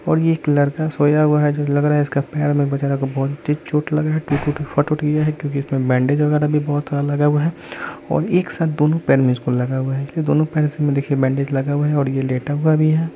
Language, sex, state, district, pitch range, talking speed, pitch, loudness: Bhojpuri, male, Bihar, Saran, 140-150 Hz, 285 wpm, 145 Hz, -18 LUFS